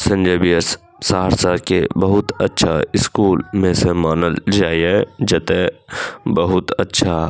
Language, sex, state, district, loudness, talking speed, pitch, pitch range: Maithili, male, Bihar, Saharsa, -17 LUFS, 125 wpm, 90 Hz, 85-95 Hz